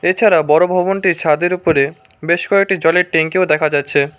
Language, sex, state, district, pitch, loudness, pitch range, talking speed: Bengali, male, West Bengal, Cooch Behar, 170 Hz, -14 LUFS, 155-185 Hz, 160 wpm